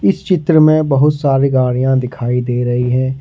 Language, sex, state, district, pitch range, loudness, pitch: Hindi, male, Jharkhand, Ranchi, 125-150 Hz, -14 LUFS, 130 Hz